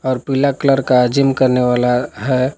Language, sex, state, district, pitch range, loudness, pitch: Hindi, male, Jharkhand, Palamu, 125-135 Hz, -15 LUFS, 130 Hz